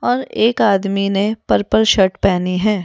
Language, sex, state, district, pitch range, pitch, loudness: Hindi, female, Rajasthan, Jaipur, 195-220 Hz, 200 Hz, -16 LUFS